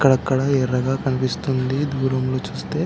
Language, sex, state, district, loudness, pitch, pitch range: Telugu, male, Telangana, Karimnagar, -21 LUFS, 130 Hz, 130-135 Hz